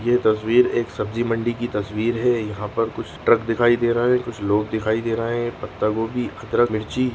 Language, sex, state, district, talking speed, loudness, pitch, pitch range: Bhojpuri, male, Uttar Pradesh, Gorakhpur, 225 wpm, -21 LUFS, 115 Hz, 110-120 Hz